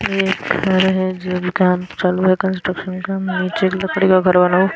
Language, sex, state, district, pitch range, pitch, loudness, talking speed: Hindi, female, Himachal Pradesh, Shimla, 185-190 Hz, 185 Hz, -17 LUFS, 215 wpm